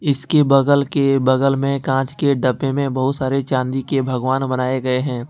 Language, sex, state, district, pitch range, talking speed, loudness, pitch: Hindi, male, Jharkhand, Ranchi, 130-140 Hz, 190 wpm, -18 LUFS, 135 Hz